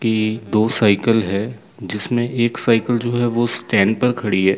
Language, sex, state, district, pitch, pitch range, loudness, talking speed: Hindi, male, Chandigarh, Chandigarh, 115 Hz, 105-120 Hz, -18 LUFS, 185 wpm